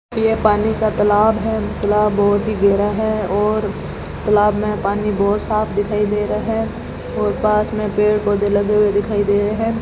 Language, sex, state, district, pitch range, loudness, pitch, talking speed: Hindi, female, Rajasthan, Bikaner, 205-215 Hz, -17 LUFS, 210 Hz, 190 wpm